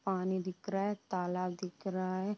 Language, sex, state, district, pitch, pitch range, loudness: Hindi, female, Uttar Pradesh, Deoria, 185 Hz, 185-195 Hz, -37 LUFS